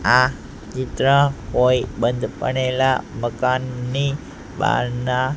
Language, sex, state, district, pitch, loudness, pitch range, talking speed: Gujarati, male, Gujarat, Gandhinagar, 130 Hz, -20 LUFS, 125-130 Hz, 80 wpm